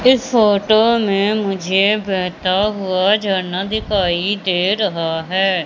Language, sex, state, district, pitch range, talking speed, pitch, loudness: Hindi, female, Madhya Pradesh, Katni, 185-210 Hz, 115 wpm, 195 Hz, -16 LUFS